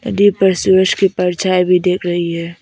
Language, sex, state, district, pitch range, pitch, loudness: Hindi, female, Arunachal Pradesh, Papum Pare, 180-190 Hz, 180 Hz, -14 LUFS